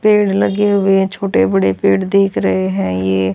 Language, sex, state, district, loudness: Hindi, female, Haryana, Charkhi Dadri, -14 LUFS